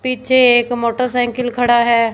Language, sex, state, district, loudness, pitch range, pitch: Hindi, female, Punjab, Fazilka, -14 LUFS, 235-250 Hz, 245 Hz